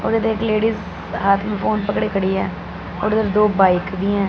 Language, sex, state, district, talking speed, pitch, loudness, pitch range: Hindi, female, Punjab, Fazilka, 225 wpm, 200 Hz, -19 LUFS, 190-215 Hz